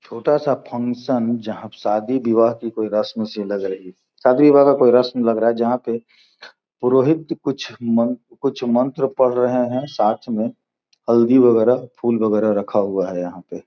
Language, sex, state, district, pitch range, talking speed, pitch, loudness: Hindi, male, Bihar, Gopalganj, 110-130 Hz, 175 wpm, 120 Hz, -18 LUFS